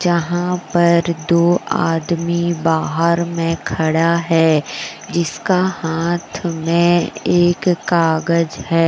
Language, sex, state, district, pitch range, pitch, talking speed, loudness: Hindi, female, Jharkhand, Deoghar, 165-175 Hz, 170 Hz, 95 wpm, -17 LUFS